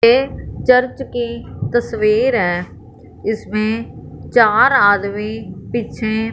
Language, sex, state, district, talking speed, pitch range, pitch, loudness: Hindi, female, Punjab, Fazilka, 85 wpm, 215-240 Hz, 225 Hz, -17 LUFS